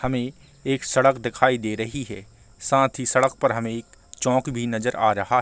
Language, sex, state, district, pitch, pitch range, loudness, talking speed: Hindi, male, Chhattisgarh, Rajnandgaon, 125 Hz, 110-130 Hz, -23 LUFS, 210 wpm